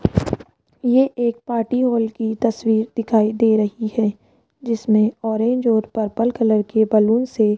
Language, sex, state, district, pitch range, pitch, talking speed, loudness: Hindi, female, Rajasthan, Jaipur, 220-235 Hz, 225 Hz, 150 wpm, -19 LUFS